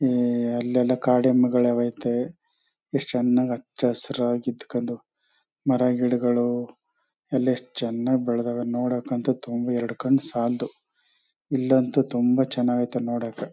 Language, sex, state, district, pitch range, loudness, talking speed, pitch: Kannada, male, Karnataka, Chamarajanagar, 120-130 Hz, -24 LUFS, 115 wpm, 125 Hz